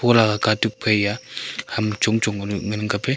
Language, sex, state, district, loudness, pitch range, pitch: Wancho, male, Arunachal Pradesh, Longding, -21 LUFS, 105-115 Hz, 110 Hz